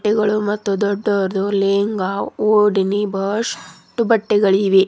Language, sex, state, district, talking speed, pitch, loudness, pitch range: Kannada, female, Karnataka, Bidar, 85 wpm, 205 Hz, -18 LUFS, 195-210 Hz